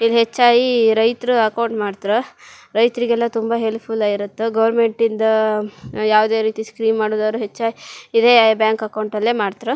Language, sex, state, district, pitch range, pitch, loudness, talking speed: Kannada, female, Karnataka, Shimoga, 215-230 Hz, 225 Hz, -17 LUFS, 130 wpm